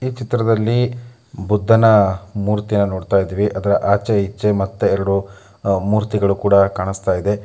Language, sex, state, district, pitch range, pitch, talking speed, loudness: Kannada, male, Karnataka, Mysore, 100-110 Hz, 100 Hz, 120 wpm, -17 LUFS